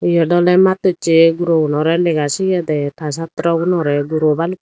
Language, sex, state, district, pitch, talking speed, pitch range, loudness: Chakma, female, Tripura, Dhalai, 165 Hz, 170 wpm, 155-175 Hz, -15 LUFS